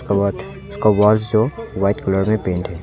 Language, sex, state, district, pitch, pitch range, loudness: Hindi, male, Arunachal Pradesh, Longding, 100 Hz, 95-110 Hz, -18 LUFS